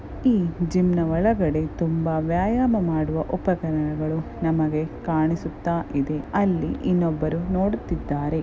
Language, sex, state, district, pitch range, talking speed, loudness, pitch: Kannada, female, Karnataka, Gulbarga, 155-180 Hz, 100 wpm, -23 LUFS, 165 Hz